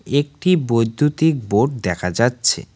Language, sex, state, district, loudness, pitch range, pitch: Bengali, male, West Bengal, Cooch Behar, -18 LUFS, 115-150 Hz, 130 Hz